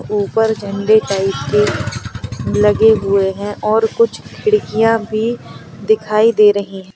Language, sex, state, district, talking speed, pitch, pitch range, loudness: Hindi, female, Uttar Pradesh, Lalitpur, 130 wpm, 205 Hz, 190-220 Hz, -15 LUFS